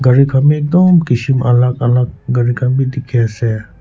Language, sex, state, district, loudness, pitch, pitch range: Nagamese, male, Nagaland, Kohima, -13 LUFS, 125 Hz, 120-135 Hz